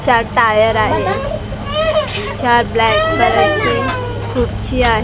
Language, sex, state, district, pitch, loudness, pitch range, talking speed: Marathi, female, Maharashtra, Mumbai Suburban, 240 Hz, -14 LUFS, 225-300 Hz, 95 wpm